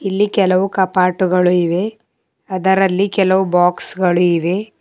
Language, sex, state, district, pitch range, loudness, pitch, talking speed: Kannada, female, Karnataka, Bidar, 180-195 Hz, -15 LUFS, 185 Hz, 110 wpm